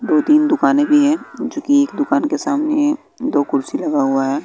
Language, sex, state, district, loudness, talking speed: Hindi, male, Bihar, West Champaran, -16 LUFS, 215 wpm